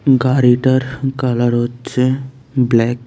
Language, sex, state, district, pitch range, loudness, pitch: Bengali, male, Tripura, West Tripura, 120-130 Hz, -16 LUFS, 130 Hz